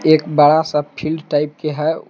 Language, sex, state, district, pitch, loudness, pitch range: Hindi, male, Jharkhand, Palamu, 155 Hz, -16 LUFS, 150-155 Hz